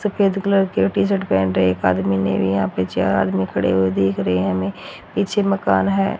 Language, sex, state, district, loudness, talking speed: Hindi, female, Haryana, Rohtak, -19 LUFS, 230 wpm